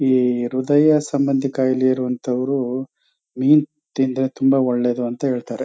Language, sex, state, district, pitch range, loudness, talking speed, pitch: Kannada, male, Karnataka, Chamarajanagar, 125-140 Hz, -19 LUFS, 125 wpm, 130 Hz